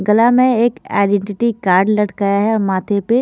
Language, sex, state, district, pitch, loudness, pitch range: Hindi, female, Haryana, Jhajjar, 210 Hz, -15 LUFS, 200-235 Hz